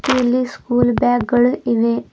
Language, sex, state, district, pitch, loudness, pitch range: Kannada, female, Karnataka, Bidar, 245 Hz, -17 LUFS, 240-250 Hz